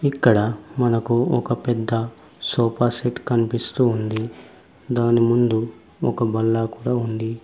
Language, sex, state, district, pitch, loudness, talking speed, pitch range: Telugu, male, Telangana, Mahabubabad, 115 Hz, -21 LUFS, 105 wpm, 115-120 Hz